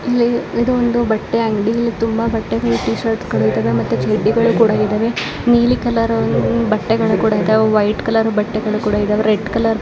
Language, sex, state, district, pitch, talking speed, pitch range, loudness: Kannada, female, Karnataka, Dharwad, 220 Hz, 160 wpm, 210-230 Hz, -16 LUFS